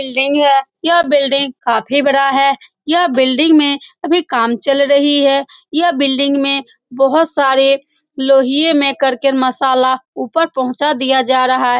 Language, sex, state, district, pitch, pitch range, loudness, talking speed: Hindi, female, Bihar, Saran, 275 Hz, 265-290 Hz, -13 LUFS, 155 wpm